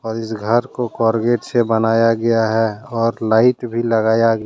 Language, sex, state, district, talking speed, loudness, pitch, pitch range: Hindi, male, Jharkhand, Deoghar, 175 wpm, -17 LUFS, 115 Hz, 110-115 Hz